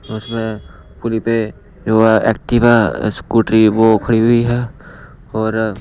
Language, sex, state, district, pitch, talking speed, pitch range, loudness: Hindi, male, Punjab, Pathankot, 110 Hz, 105 wpm, 110-115 Hz, -15 LUFS